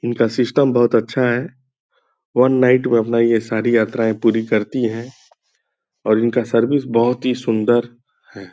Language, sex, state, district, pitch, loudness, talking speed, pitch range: Hindi, male, Bihar, Purnia, 120 Hz, -17 LUFS, 155 wpm, 115-125 Hz